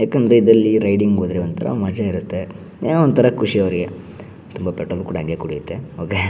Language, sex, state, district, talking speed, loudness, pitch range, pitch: Kannada, male, Karnataka, Shimoga, 170 wpm, -18 LUFS, 90-115 Hz, 100 Hz